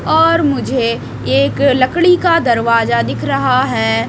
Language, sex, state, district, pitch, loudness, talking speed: Hindi, female, Odisha, Malkangiri, 230 Hz, -13 LUFS, 130 wpm